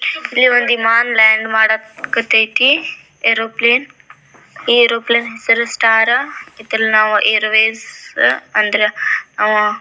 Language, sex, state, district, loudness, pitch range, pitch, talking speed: Kannada, female, Karnataka, Belgaum, -13 LUFS, 220-240 Hz, 225 Hz, 75 wpm